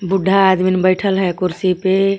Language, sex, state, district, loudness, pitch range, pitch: Hindi, female, Jharkhand, Garhwa, -15 LUFS, 185-195 Hz, 190 Hz